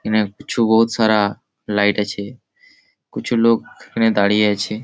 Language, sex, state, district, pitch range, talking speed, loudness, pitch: Bengali, male, West Bengal, Malda, 100-115 Hz, 160 wpm, -18 LUFS, 105 Hz